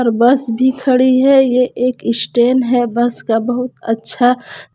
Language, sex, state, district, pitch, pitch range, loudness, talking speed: Hindi, female, Jharkhand, Palamu, 245 Hz, 235-255 Hz, -14 LUFS, 165 wpm